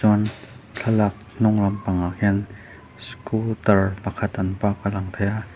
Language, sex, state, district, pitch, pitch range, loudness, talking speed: Mizo, male, Mizoram, Aizawl, 105 Hz, 100-110 Hz, -23 LUFS, 150 wpm